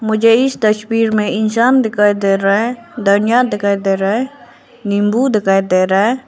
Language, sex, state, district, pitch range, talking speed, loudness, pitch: Hindi, female, Arunachal Pradesh, Lower Dibang Valley, 200-235 Hz, 180 wpm, -14 LUFS, 215 Hz